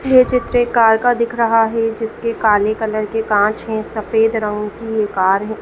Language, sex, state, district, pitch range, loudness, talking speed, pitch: Hindi, female, Bihar, Sitamarhi, 215-230 Hz, -16 LUFS, 215 wpm, 225 Hz